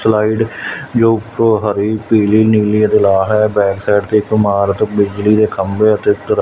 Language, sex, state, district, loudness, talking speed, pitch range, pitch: Punjabi, male, Punjab, Fazilka, -13 LUFS, 170 wpm, 105-110 Hz, 105 Hz